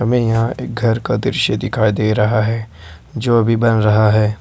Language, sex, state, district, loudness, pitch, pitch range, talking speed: Hindi, male, Jharkhand, Ranchi, -16 LUFS, 115 Hz, 105-115 Hz, 205 wpm